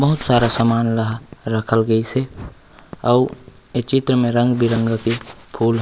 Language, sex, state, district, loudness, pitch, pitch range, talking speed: Chhattisgarhi, male, Chhattisgarh, Raigarh, -18 LUFS, 120 Hz, 115-125 Hz, 145 wpm